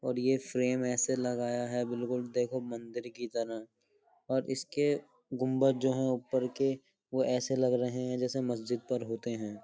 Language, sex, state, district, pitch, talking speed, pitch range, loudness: Hindi, male, Uttar Pradesh, Jyotiba Phule Nagar, 125 Hz, 175 wpm, 120-130 Hz, -33 LUFS